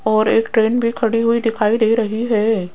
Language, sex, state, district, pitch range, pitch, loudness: Hindi, female, Rajasthan, Jaipur, 215-230 Hz, 225 Hz, -17 LUFS